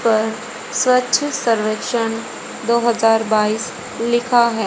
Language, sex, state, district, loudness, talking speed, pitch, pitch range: Hindi, female, Haryana, Rohtak, -18 LUFS, 105 wpm, 230 Hz, 225-240 Hz